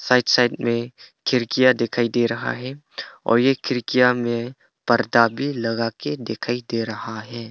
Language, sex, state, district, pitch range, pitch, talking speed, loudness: Hindi, male, Arunachal Pradesh, Papum Pare, 115-125 Hz, 120 Hz, 150 wpm, -21 LUFS